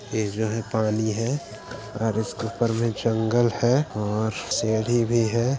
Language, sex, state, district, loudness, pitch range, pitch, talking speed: Hindi, male, Chhattisgarh, Jashpur, -24 LUFS, 110-120 Hz, 110 Hz, 160 wpm